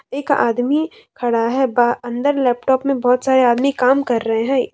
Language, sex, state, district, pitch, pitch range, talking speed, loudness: Hindi, female, Jharkhand, Deoghar, 255 Hz, 240-270 Hz, 190 wpm, -17 LUFS